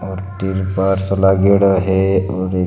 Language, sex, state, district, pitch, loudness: Marwari, male, Rajasthan, Nagaur, 95 Hz, -15 LUFS